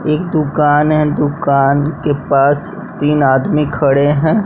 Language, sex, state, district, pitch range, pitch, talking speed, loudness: Hindi, male, Bihar, West Champaran, 140-150 Hz, 145 Hz, 135 wpm, -13 LUFS